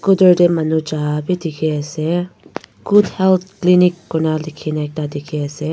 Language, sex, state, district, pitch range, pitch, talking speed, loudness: Nagamese, female, Nagaland, Dimapur, 155-180 Hz, 160 Hz, 135 wpm, -17 LUFS